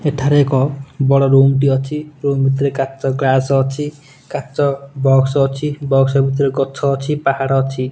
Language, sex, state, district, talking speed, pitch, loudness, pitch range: Odia, male, Odisha, Nuapada, 150 wpm, 135 Hz, -16 LUFS, 135-140 Hz